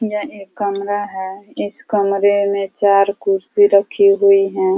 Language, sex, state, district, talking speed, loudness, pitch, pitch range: Hindi, female, Uttar Pradesh, Ghazipur, 150 wpm, -16 LUFS, 200 Hz, 200-210 Hz